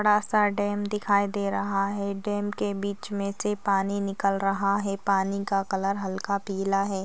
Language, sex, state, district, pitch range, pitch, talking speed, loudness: Hindi, female, Maharashtra, Dhule, 195-205 Hz, 200 Hz, 185 wpm, -27 LUFS